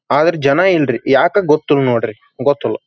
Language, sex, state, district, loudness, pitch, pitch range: Kannada, male, Karnataka, Belgaum, -14 LUFS, 145 Hz, 135-170 Hz